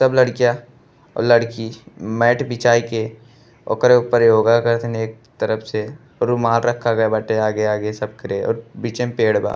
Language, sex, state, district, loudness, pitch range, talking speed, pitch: Bhojpuri, male, Uttar Pradesh, Gorakhpur, -18 LUFS, 110-120 Hz, 165 wpm, 115 Hz